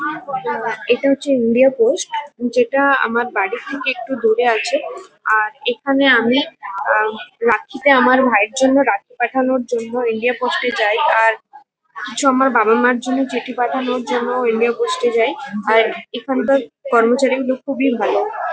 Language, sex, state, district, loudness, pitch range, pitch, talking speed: Bengali, female, West Bengal, Kolkata, -16 LUFS, 235-275 Hz, 255 Hz, 135 wpm